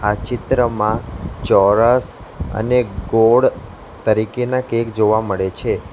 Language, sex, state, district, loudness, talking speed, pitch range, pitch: Gujarati, male, Gujarat, Valsad, -17 LUFS, 100 wpm, 105-120 Hz, 110 Hz